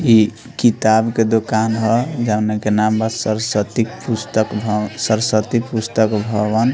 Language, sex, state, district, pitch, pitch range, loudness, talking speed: Bhojpuri, male, Bihar, Muzaffarpur, 110 Hz, 110-115 Hz, -17 LUFS, 135 wpm